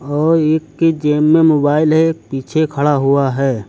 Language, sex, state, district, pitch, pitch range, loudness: Hindi, male, Uttar Pradesh, Lucknow, 150 Hz, 140-160 Hz, -14 LUFS